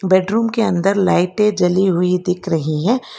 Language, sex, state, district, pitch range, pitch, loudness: Hindi, female, Karnataka, Bangalore, 180-210 Hz, 185 Hz, -16 LUFS